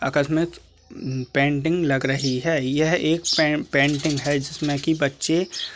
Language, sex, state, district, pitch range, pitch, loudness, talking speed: Hindi, male, Chhattisgarh, Raigarh, 140-160 Hz, 150 Hz, -22 LUFS, 165 wpm